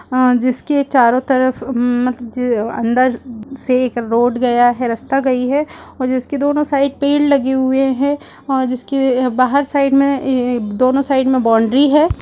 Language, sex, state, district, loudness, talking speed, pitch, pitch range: Hindi, female, Chhattisgarh, Raigarh, -15 LUFS, 160 wpm, 255 Hz, 245-275 Hz